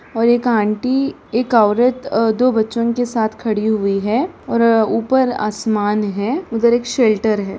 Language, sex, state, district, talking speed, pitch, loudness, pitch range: Hindi, female, Bihar, Gopalganj, 165 wpm, 225 Hz, -17 LUFS, 215-245 Hz